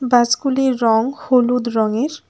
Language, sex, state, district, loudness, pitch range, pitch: Bengali, female, West Bengal, Alipurduar, -17 LUFS, 235-265 Hz, 250 Hz